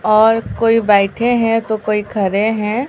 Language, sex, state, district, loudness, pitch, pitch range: Hindi, female, Bihar, Katihar, -15 LUFS, 220 Hz, 210-225 Hz